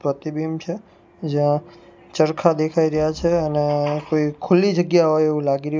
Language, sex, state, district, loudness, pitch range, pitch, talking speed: Gujarati, male, Gujarat, Gandhinagar, -20 LUFS, 150-170 Hz, 155 Hz, 155 wpm